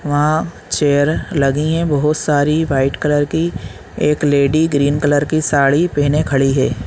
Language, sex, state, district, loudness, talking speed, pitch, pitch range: Hindi, male, Chhattisgarh, Balrampur, -15 LUFS, 155 wpm, 145 Hz, 140-155 Hz